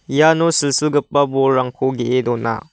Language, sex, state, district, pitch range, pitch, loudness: Garo, male, Meghalaya, West Garo Hills, 125-150 Hz, 135 Hz, -17 LUFS